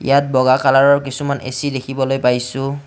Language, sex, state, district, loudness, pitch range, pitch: Assamese, male, Assam, Kamrup Metropolitan, -16 LUFS, 130-140 Hz, 135 Hz